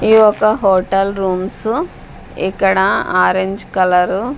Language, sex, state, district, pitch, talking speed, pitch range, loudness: Telugu, female, Andhra Pradesh, Sri Satya Sai, 195 Hz, 110 wpm, 185-215 Hz, -15 LUFS